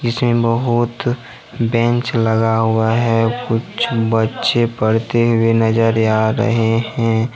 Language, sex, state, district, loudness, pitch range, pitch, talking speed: Hindi, male, Jharkhand, Ranchi, -16 LUFS, 115-120 Hz, 115 Hz, 115 wpm